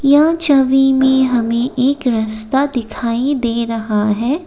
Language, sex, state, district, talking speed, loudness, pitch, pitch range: Hindi, female, Assam, Kamrup Metropolitan, 135 wpm, -15 LUFS, 255 Hz, 230-275 Hz